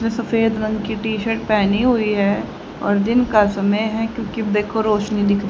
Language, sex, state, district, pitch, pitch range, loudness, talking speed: Hindi, female, Haryana, Jhajjar, 215 Hz, 205-225 Hz, -19 LUFS, 195 wpm